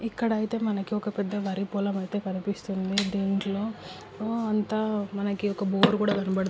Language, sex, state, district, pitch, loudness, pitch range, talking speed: Telugu, female, Telangana, Karimnagar, 205 Hz, -28 LUFS, 195-215 Hz, 150 wpm